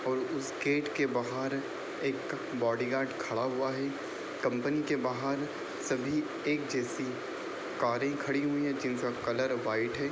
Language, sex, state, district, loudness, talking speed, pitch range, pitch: Hindi, male, Bihar, Lakhisarai, -33 LUFS, 140 wpm, 125-145 Hz, 135 Hz